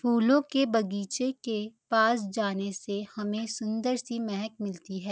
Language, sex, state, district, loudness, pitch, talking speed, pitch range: Hindi, female, Uttarakhand, Uttarkashi, -29 LUFS, 220 Hz, 150 wpm, 200-235 Hz